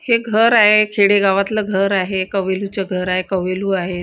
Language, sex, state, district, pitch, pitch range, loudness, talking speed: Marathi, female, Maharashtra, Gondia, 195 Hz, 190-210 Hz, -16 LUFS, 165 wpm